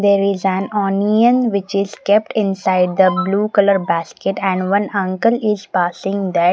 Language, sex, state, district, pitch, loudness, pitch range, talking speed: English, female, Odisha, Nuapada, 195 Hz, -16 LUFS, 190-205 Hz, 175 wpm